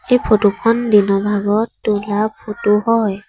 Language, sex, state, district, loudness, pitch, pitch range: Assamese, female, Assam, Sonitpur, -16 LUFS, 210 Hz, 205-230 Hz